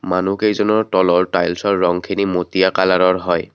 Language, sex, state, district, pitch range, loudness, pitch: Assamese, male, Assam, Kamrup Metropolitan, 90-100 Hz, -16 LUFS, 95 Hz